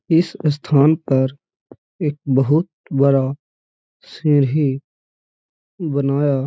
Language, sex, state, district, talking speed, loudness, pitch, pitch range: Hindi, male, Uttar Pradesh, Hamirpur, 85 wpm, -18 LUFS, 140 Hz, 130-155 Hz